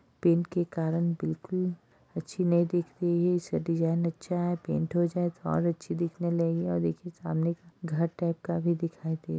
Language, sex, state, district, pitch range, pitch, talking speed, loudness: Hindi, female, Bihar, Jahanabad, 165-175 Hz, 170 Hz, 210 wpm, -30 LUFS